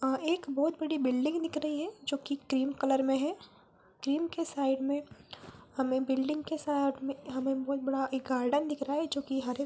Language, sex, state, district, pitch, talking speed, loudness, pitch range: Hindi, female, Bihar, Jamui, 275 Hz, 210 wpm, -32 LUFS, 265-300 Hz